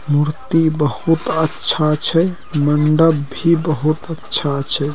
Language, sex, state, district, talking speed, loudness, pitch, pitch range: Maithili, male, Bihar, Purnia, 110 wpm, -16 LUFS, 155 Hz, 150-165 Hz